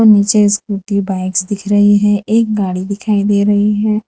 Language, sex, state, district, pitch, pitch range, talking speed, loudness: Hindi, female, Gujarat, Valsad, 205 Hz, 200-210 Hz, 175 wpm, -13 LUFS